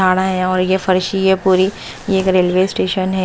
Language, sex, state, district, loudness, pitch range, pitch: Hindi, female, Maharashtra, Mumbai Suburban, -15 LUFS, 185-190 Hz, 185 Hz